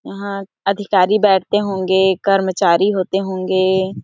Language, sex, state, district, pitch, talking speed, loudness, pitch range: Hindi, female, Chhattisgarh, Sarguja, 190 Hz, 105 wpm, -16 LUFS, 190-200 Hz